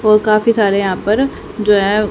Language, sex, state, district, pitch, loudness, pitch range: Hindi, female, Haryana, Jhajjar, 210 Hz, -14 LUFS, 200-215 Hz